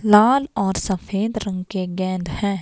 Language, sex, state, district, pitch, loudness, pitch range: Hindi, female, Himachal Pradesh, Shimla, 195 Hz, -21 LUFS, 185-210 Hz